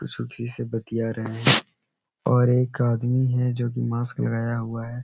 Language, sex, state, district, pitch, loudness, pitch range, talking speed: Hindi, male, Uttar Pradesh, Etah, 120 Hz, -23 LUFS, 115-125 Hz, 190 wpm